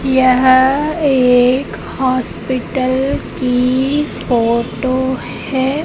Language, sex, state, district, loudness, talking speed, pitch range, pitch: Hindi, female, Madhya Pradesh, Katni, -15 LUFS, 60 wpm, 255-265 Hz, 260 Hz